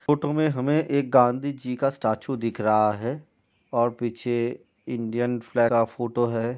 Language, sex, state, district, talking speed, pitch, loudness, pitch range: Hindi, male, Chhattisgarh, Raigarh, 155 wpm, 120 Hz, -25 LUFS, 115-135 Hz